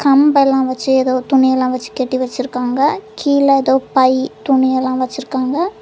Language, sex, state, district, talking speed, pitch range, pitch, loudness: Tamil, female, Tamil Nadu, Kanyakumari, 155 wpm, 255-275 Hz, 265 Hz, -15 LUFS